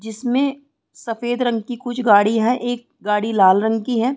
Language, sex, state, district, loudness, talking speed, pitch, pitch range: Hindi, female, Bihar, Saran, -19 LUFS, 185 wpm, 240 Hz, 220-245 Hz